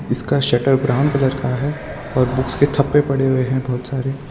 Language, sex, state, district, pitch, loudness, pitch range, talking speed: Hindi, male, Gujarat, Valsad, 135 Hz, -18 LUFS, 130-140 Hz, 210 wpm